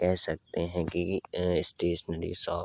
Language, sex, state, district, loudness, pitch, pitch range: Hindi, male, Uttar Pradesh, Hamirpur, -31 LUFS, 90 Hz, 85-90 Hz